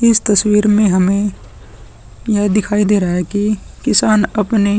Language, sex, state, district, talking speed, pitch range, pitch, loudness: Hindi, male, Bihar, Vaishali, 160 wpm, 205-210 Hz, 205 Hz, -14 LUFS